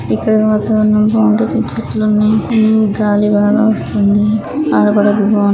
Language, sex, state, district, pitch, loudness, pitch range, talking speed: Telugu, female, Andhra Pradesh, Krishna, 210 Hz, -12 LUFS, 205-215 Hz, 100 wpm